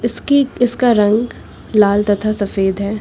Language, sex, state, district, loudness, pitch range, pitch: Hindi, female, Uttar Pradesh, Lucknow, -15 LUFS, 205-240 Hz, 215 Hz